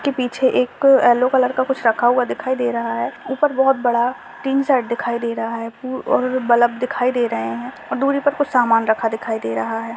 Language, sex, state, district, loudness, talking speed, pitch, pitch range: Hindi, female, Uttar Pradesh, Ghazipur, -18 LUFS, 225 wpm, 245 Hz, 230-265 Hz